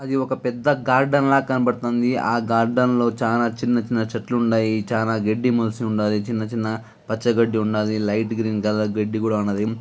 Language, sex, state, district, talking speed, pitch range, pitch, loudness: Telugu, male, Andhra Pradesh, Guntur, 155 wpm, 110-120 Hz, 115 Hz, -21 LUFS